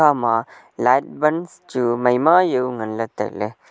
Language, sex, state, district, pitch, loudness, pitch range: Wancho, male, Arunachal Pradesh, Longding, 125 Hz, -20 LUFS, 115-150 Hz